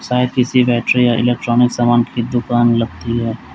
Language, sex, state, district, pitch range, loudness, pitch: Hindi, male, Uttar Pradesh, Lalitpur, 120-125 Hz, -15 LUFS, 120 Hz